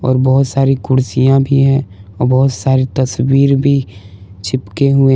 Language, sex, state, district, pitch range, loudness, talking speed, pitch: Hindi, male, Jharkhand, Palamu, 125-135 Hz, -13 LUFS, 150 wpm, 130 Hz